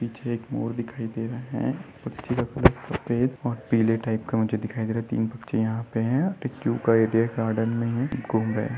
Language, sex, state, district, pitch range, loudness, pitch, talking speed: Hindi, male, Uttar Pradesh, Ghazipur, 110-125 Hz, -26 LUFS, 115 Hz, 150 wpm